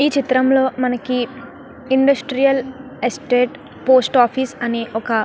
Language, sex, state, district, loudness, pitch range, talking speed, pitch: Telugu, female, Andhra Pradesh, Krishna, -18 LUFS, 245-275 Hz, 125 wpm, 260 Hz